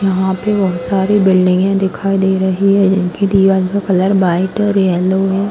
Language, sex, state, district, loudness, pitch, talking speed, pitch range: Hindi, female, Uttar Pradesh, Varanasi, -13 LUFS, 190 Hz, 205 wpm, 185-195 Hz